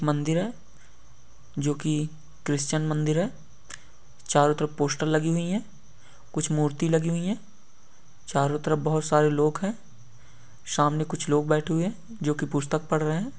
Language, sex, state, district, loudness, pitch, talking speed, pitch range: Hindi, male, Bihar, Samastipur, -26 LUFS, 155 Hz, 160 wpm, 145-165 Hz